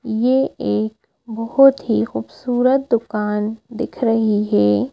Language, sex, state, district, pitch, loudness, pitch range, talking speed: Hindi, female, Madhya Pradesh, Bhopal, 225 Hz, -18 LUFS, 210-245 Hz, 110 wpm